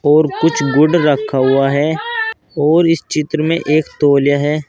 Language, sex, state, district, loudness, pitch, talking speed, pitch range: Hindi, male, Uttar Pradesh, Saharanpur, -14 LUFS, 150 Hz, 165 wpm, 145-160 Hz